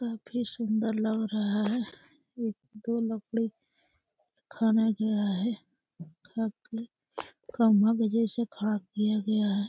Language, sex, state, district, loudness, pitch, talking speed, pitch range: Hindi, female, Uttar Pradesh, Deoria, -29 LUFS, 220 Hz, 125 wpm, 210-230 Hz